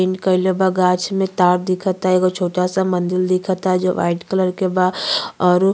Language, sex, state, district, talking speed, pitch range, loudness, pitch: Bhojpuri, female, Uttar Pradesh, Gorakhpur, 165 wpm, 180-185 Hz, -18 LUFS, 185 Hz